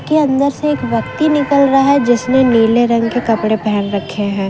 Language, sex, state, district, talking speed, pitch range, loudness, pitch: Hindi, female, Jharkhand, Ranchi, 215 wpm, 225-280 Hz, -14 LUFS, 245 Hz